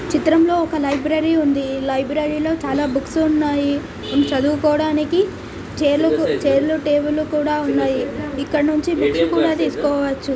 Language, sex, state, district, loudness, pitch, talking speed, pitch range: Telugu, female, Telangana, Nalgonda, -18 LUFS, 300 Hz, 125 wpm, 280-310 Hz